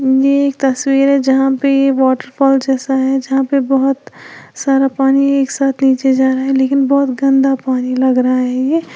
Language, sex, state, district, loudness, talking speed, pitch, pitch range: Hindi, female, Uttar Pradesh, Lalitpur, -13 LUFS, 195 wpm, 270 Hz, 265-275 Hz